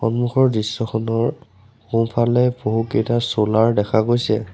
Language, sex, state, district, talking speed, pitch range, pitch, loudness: Assamese, male, Assam, Sonitpur, 95 wpm, 110-120 Hz, 115 Hz, -19 LUFS